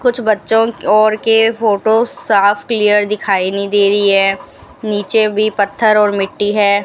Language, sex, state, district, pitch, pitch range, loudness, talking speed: Hindi, female, Rajasthan, Bikaner, 210 Hz, 200-220 Hz, -13 LUFS, 165 wpm